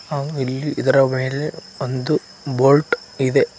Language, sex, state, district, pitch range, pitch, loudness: Kannada, male, Karnataka, Koppal, 130-145 Hz, 135 Hz, -20 LUFS